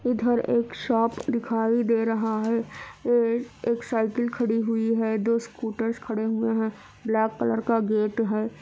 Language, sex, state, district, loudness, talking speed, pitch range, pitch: Hindi, female, Andhra Pradesh, Anantapur, -25 LUFS, 180 wpm, 225-235 Hz, 230 Hz